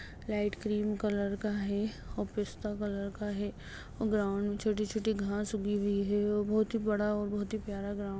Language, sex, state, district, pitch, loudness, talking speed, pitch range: Hindi, female, Chhattisgarh, Raigarh, 210 Hz, -33 LUFS, 205 wpm, 205-210 Hz